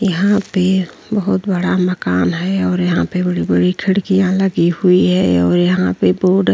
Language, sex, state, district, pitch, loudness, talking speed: Hindi, female, Uttar Pradesh, Jyotiba Phule Nagar, 170 Hz, -15 LUFS, 175 wpm